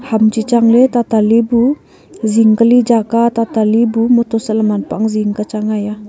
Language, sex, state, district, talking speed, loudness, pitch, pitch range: Wancho, female, Arunachal Pradesh, Longding, 185 wpm, -13 LUFS, 225 Hz, 215-235 Hz